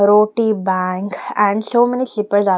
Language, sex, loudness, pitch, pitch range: English, female, -17 LUFS, 205 Hz, 195-220 Hz